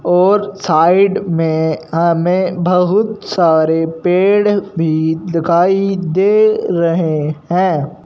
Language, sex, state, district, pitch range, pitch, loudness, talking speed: Hindi, male, Punjab, Fazilka, 165-195 Hz, 175 Hz, -14 LUFS, 90 wpm